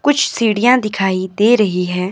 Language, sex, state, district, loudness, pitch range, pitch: Hindi, male, Himachal Pradesh, Shimla, -15 LUFS, 190-240 Hz, 210 Hz